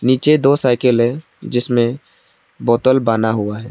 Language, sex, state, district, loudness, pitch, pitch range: Hindi, male, Arunachal Pradesh, Lower Dibang Valley, -16 LUFS, 125 Hz, 120-130 Hz